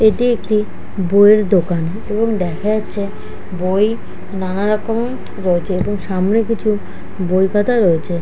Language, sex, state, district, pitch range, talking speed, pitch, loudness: Bengali, female, West Bengal, Kolkata, 185-215 Hz, 130 wpm, 205 Hz, -17 LUFS